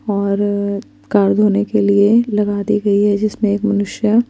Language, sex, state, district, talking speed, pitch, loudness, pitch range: Hindi, female, Chandigarh, Chandigarh, 165 wpm, 205 Hz, -15 LUFS, 200-210 Hz